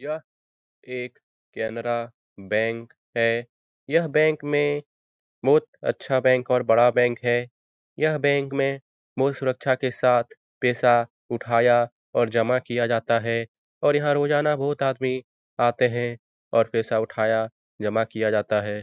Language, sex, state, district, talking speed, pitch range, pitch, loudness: Hindi, male, Bihar, Jahanabad, 135 wpm, 115-135 Hz, 120 Hz, -23 LUFS